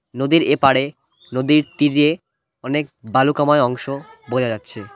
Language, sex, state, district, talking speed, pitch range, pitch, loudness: Bengali, male, West Bengal, Cooch Behar, 110 wpm, 130-150 Hz, 135 Hz, -18 LUFS